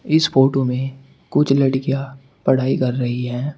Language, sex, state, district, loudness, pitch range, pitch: Hindi, male, Uttar Pradesh, Shamli, -19 LUFS, 130-140 Hz, 135 Hz